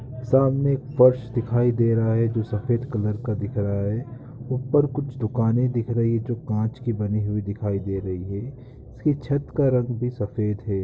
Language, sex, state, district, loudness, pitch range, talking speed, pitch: Hindi, male, Uttar Pradesh, Varanasi, -24 LUFS, 105-125 Hz, 200 wpm, 115 Hz